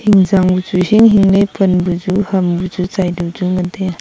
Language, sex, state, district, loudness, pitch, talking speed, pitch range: Wancho, female, Arunachal Pradesh, Longding, -13 LUFS, 185 Hz, 225 wpm, 180-195 Hz